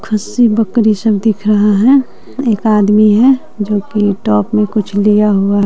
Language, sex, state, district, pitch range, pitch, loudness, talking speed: Hindi, female, Bihar, West Champaran, 205-225 Hz, 215 Hz, -12 LUFS, 170 wpm